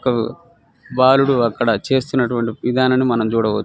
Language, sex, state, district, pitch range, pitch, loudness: Telugu, male, Telangana, Nalgonda, 115-130 Hz, 125 Hz, -17 LUFS